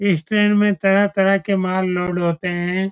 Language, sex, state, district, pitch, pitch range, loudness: Hindi, male, Bihar, Saran, 195 Hz, 180-200 Hz, -18 LUFS